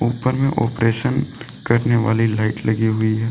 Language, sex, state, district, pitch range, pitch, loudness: Hindi, male, Jharkhand, Deoghar, 110-120 Hz, 115 Hz, -19 LUFS